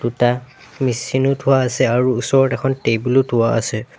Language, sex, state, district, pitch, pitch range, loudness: Assamese, male, Assam, Sonitpur, 125 Hz, 120-135 Hz, -17 LUFS